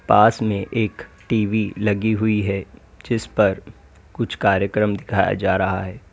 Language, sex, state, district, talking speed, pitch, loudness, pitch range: Hindi, male, Uttar Pradesh, Lalitpur, 135 wpm, 105 Hz, -20 LUFS, 95-110 Hz